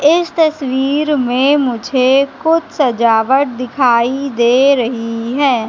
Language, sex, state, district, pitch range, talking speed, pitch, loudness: Hindi, female, Madhya Pradesh, Katni, 245-285 Hz, 105 wpm, 265 Hz, -14 LUFS